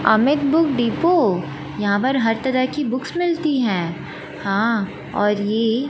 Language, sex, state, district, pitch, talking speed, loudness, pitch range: Hindi, female, Chandigarh, Chandigarh, 230 Hz, 140 wpm, -20 LUFS, 205-280 Hz